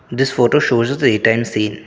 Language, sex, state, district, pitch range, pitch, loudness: English, male, Assam, Kamrup Metropolitan, 110-130 Hz, 120 Hz, -15 LUFS